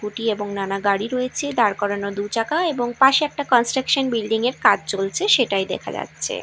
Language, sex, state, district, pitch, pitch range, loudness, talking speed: Bengali, female, Odisha, Malkangiri, 230 Hz, 200-260 Hz, -20 LUFS, 185 wpm